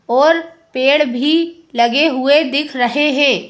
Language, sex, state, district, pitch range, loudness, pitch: Hindi, female, Madhya Pradesh, Bhopal, 260-320 Hz, -14 LUFS, 290 Hz